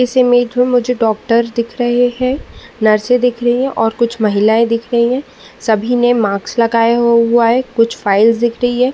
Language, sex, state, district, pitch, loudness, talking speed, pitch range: Hindi, female, Uttar Pradesh, Muzaffarnagar, 235 Hz, -13 LUFS, 195 wpm, 230-245 Hz